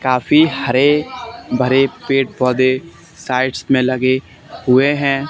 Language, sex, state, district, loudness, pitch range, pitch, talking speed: Hindi, male, Haryana, Charkhi Dadri, -15 LUFS, 130-140 Hz, 130 Hz, 115 wpm